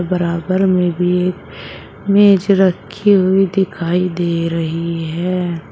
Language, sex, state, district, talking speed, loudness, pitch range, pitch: Hindi, male, Uttar Pradesh, Shamli, 105 wpm, -15 LUFS, 170-190 Hz, 180 Hz